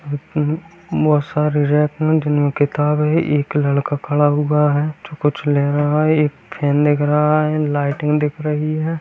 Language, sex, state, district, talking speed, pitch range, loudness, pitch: Hindi, male, Bihar, Kishanganj, 175 wpm, 145-155 Hz, -17 LUFS, 150 Hz